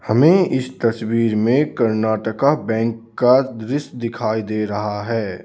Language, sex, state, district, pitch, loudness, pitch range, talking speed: Hindi, male, Bihar, Patna, 115 Hz, -19 LUFS, 110-130 Hz, 130 wpm